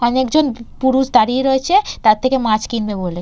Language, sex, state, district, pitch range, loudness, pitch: Bengali, female, West Bengal, Purulia, 215-265 Hz, -16 LUFS, 255 Hz